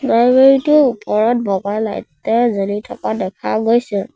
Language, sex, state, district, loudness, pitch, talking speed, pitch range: Assamese, male, Assam, Sonitpur, -15 LUFS, 225 Hz, 130 wpm, 205-245 Hz